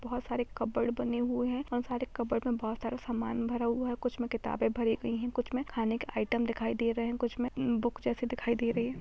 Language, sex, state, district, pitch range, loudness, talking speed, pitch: Hindi, female, Jharkhand, Jamtara, 235-245 Hz, -33 LUFS, 255 wpm, 240 Hz